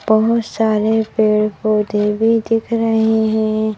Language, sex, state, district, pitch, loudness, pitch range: Hindi, female, Madhya Pradesh, Bhopal, 220 Hz, -16 LUFS, 215-225 Hz